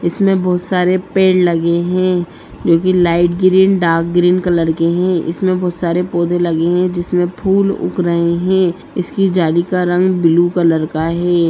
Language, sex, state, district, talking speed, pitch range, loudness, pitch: Hindi, female, Bihar, Sitamarhi, 175 wpm, 170-185 Hz, -14 LUFS, 175 Hz